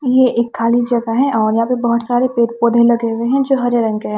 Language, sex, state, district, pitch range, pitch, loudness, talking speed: Hindi, female, Bihar, Kaimur, 230-250 Hz, 235 Hz, -15 LUFS, 285 wpm